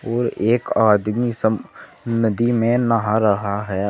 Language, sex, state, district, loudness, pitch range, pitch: Hindi, male, Uttar Pradesh, Saharanpur, -19 LUFS, 105-120 Hz, 110 Hz